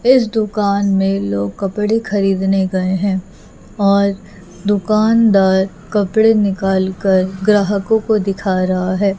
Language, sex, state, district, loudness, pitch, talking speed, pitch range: Hindi, female, Chhattisgarh, Raipur, -15 LUFS, 195 Hz, 120 wpm, 190-210 Hz